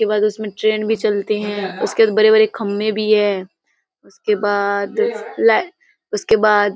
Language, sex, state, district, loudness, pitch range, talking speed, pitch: Hindi, female, Bihar, Kishanganj, -17 LUFS, 205-220 Hz, 160 wpm, 215 Hz